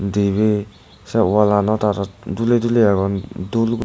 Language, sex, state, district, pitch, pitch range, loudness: Chakma, male, Tripura, West Tripura, 105 Hz, 100-115 Hz, -18 LUFS